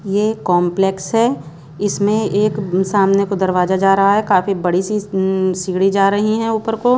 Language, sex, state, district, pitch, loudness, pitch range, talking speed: Hindi, female, Bihar, West Champaran, 195 Hz, -16 LUFS, 185-210 Hz, 180 wpm